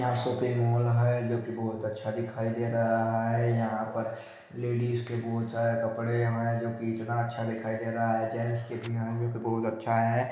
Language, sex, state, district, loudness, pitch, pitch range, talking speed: Hindi, male, Chhattisgarh, Balrampur, -30 LUFS, 115 Hz, 115-120 Hz, 210 wpm